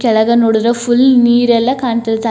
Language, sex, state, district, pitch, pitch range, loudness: Kannada, female, Karnataka, Chamarajanagar, 235 Hz, 225-245 Hz, -12 LUFS